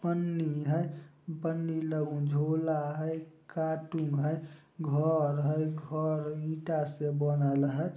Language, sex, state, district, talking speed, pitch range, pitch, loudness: Maithili, male, Bihar, Samastipur, 115 wpm, 150-160 Hz, 155 Hz, -32 LUFS